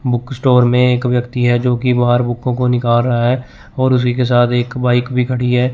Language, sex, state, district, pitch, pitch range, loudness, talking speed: Hindi, male, Chandigarh, Chandigarh, 125 Hz, 120-125 Hz, -15 LUFS, 240 wpm